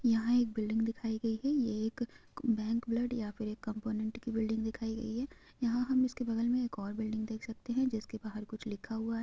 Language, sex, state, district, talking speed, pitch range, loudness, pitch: Hindi, female, Chhattisgarh, Bilaspur, 235 wpm, 220-240 Hz, -35 LUFS, 225 Hz